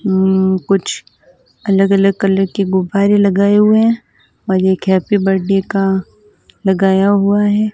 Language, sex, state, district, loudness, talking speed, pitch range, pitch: Hindi, female, Rajasthan, Barmer, -14 LUFS, 130 wpm, 190-205 Hz, 195 Hz